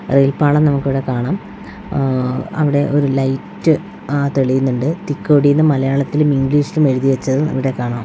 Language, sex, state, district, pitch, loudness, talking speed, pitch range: Malayalam, female, Kerala, Wayanad, 140 Hz, -16 LUFS, 125 wpm, 135-145 Hz